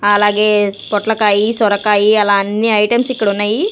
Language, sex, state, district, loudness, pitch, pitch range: Telugu, female, Andhra Pradesh, Sri Satya Sai, -13 LUFS, 210 Hz, 205-220 Hz